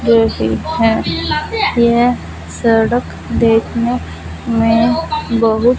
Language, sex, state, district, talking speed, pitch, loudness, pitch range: Hindi, female, Punjab, Fazilka, 95 wpm, 235 Hz, -15 LUFS, 225-245 Hz